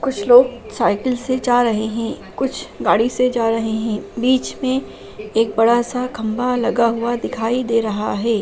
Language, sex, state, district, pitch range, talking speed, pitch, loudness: Bhojpuri, female, Bihar, Saran, 220-250 Hz, 170 wpm, 235 Hz, -18 LUFS